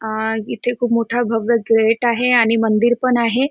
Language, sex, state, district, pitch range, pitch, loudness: Marathi, female, Maharashtra, Nagpur, 225-245 Hz, 235 Hz, -17 LUFS